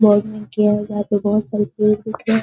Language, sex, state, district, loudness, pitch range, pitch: Hindi, female, Bihar, Sitamarhi, -19 LUFS, 210-215 Hz, 210 Hz